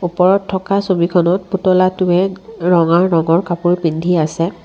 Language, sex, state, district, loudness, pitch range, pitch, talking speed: Assamese, female, Assam, Kamrup Metropolitan, -15 LUFS, 170-185 Hz, 180 Hz, 115 wpm